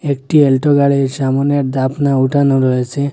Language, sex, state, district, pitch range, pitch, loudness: Bengali, male, Assam, Hailakandi, 130-140 Hz, 140 Hz, -14 LUFS